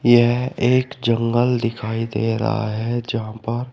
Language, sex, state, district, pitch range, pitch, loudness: Hindi, male, Uttar Pradesh, Shamli, 115-120 Hz, 115 Hz, -20 LUFS